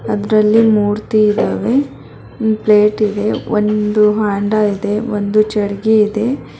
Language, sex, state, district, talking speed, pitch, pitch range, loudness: Kannada, female, Karnataka, Bangalore, 110 wpm, 210 Hz, 210-215 Hz, -14 LUFS